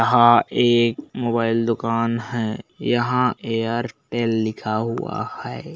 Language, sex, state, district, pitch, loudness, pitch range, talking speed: Hindi, male, Bihar, Bhagalpur, 115 Hz, -21 LUFS, 115-120 Hz, 95 wpm